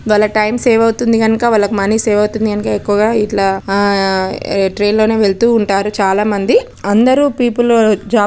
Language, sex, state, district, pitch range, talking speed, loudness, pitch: Telugu, female, Andhra Pradesh, Krishna, 200-230 Hz, 165 wpm, -13 LUFS, 210 Hz